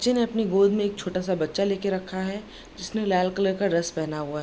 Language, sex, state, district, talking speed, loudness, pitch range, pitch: Hindi, female, Bihar, Darbhanga, 270 wpm, -25 LUFS, 180-205 Hz, 190 Hz